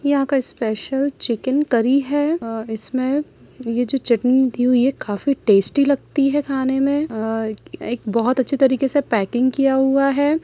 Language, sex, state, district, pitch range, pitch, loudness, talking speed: Hindi, female, Bihar, Madhepura, 235-275 Hz, 265 Hz, -19 LUFS, 170 wpm